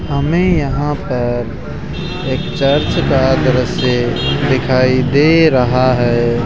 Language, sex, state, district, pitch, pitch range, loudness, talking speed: Hindi, male, Rajasthan, Jaipur, 130 Hz, 125-145 Hz, -14 LUFS, 100 wpm